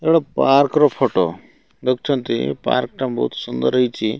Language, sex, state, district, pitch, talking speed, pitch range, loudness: Odia, male, Odisha, Malkangiri, 130 Hz, 115 wpm, 110-145 Hz, -19 LUFS